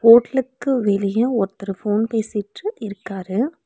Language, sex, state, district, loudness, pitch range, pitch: Tamil, female, Tamil Nadu, Nilgiris, -21 LUFS, 200-255 Hz, 220 Hz